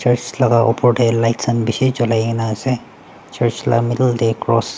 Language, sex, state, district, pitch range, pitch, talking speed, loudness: Nagamese, male, Nagaland, Dimapur, 115-120 Hz, 120 Hz, 190 wpm, -17 LUFS